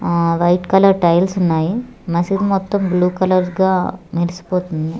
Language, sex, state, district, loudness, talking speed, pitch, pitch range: Telugu, female, Andhra Pradesh, Manyam, -16 LUFS, 130 wpm, 180 Hz, 170-190 Hz